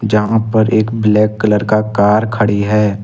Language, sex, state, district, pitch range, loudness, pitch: Hindi, male, Jharkhand, Ranchi, 105-110 Hz, -13 LUFS, 105 Hz